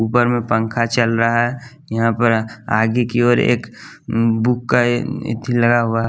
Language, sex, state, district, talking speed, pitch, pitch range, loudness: Hindi, male, Bihar, West Champaran, 180 wpm, 115 Hz, 115-120 Hz, -17 LUFS